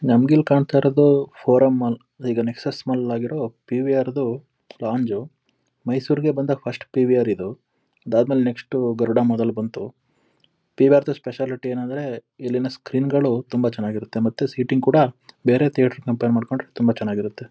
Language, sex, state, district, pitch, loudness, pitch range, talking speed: Kannada, male, Karnataka, Mysore, 125 Hz, -21 LUFS, 120-135 Hz, 145 wpm